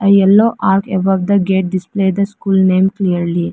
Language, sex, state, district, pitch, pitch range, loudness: English, female, Arunachal Pradesh, Lower Dibang Valley, 190 Hz, 185-200 Hz, -14 LUFS